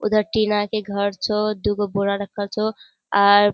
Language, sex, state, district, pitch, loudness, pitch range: Hindi, female, Bihar, Kishanganj, 205 Hz, -21 LUFS, 200-215 Hz